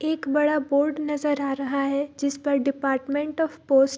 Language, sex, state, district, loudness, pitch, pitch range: Hindi, female, Bihar, Darbhanga, -24 LUFS, 285 Hz, 275-295 Hz